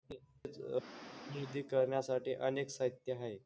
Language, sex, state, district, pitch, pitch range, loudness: Marathi, male, Maharashtra, Dhule, 130 Hz, 130-140 Hz, -39 LUFS